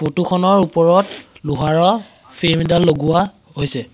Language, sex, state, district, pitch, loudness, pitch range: Assamese, male, Assam, Sonitpur, 170 Hz, -16 LUFS, 155-180 Hz